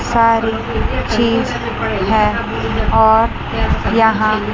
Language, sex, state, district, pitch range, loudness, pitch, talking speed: Hindi, female, Chandigarh, Chandigarh, 220-230 Hz, -15 LUFS, 225 Hz, 65 wpm